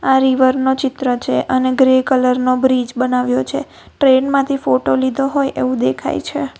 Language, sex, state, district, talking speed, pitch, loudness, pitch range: Gujarati, female, Gujarat, Valsad, 180 wpm, 260 Hz, -15 LUFS, 250-265 Hz